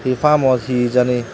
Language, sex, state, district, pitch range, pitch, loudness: Chakma, male, Tripura, Dhalai, 125-130 Hz, 125 Hz, -16 LUFS